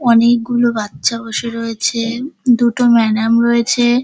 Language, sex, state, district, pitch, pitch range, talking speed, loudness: Bengali, male, West Bengal, Dakshin Dinajpur, 235 Hz, 230-240 Hz, 105 wpm, -15 LUFS